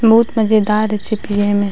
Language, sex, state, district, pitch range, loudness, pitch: Maithili, female, Bihar, Madhepura, 205-220 Hz, -15 LUFS, 215 Hz